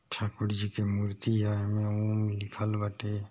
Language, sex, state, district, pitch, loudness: Bhojpuri, male, Bihar, East Champaran, 105 Hz, -31 LUFS